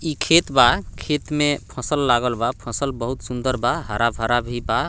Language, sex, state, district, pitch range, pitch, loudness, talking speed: Bhojpuri, male, Bihar, Muzaffarpur, 120-145 Hz, 125 Hz, -21 LUFS, 185 wpm